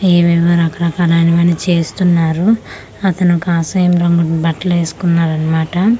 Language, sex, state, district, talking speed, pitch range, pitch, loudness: Telugu, female, Andhra Pradesh, Manyam, 100 wpm, 165-180 Hz, 170 Hz, -13 LUFS